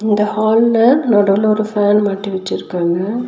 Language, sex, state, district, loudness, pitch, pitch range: Tamil, female, Tamil Nadu, Nilgiris, -14 LUFS, 210 Hz, 200-220 Hz